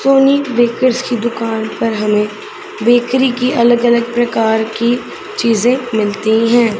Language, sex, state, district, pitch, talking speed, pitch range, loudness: Hindi, female, Punjab, Pathankot, 235 Hz, 130 wpm, 220-245 Hz, -14 LUFS